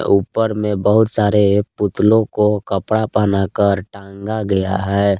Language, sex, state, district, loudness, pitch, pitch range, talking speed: Hindi, male, Jharkhand, Palamu, -16 LUFS, 100 Hz, 100-105 Hz, 140 wpm